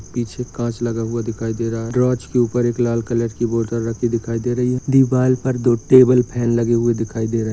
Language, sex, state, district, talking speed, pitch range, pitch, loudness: Hindi, male, Maharashtra, Sindhudurg, 255 wpm, 115-125 Hz, 120 Hz, -18 LUFS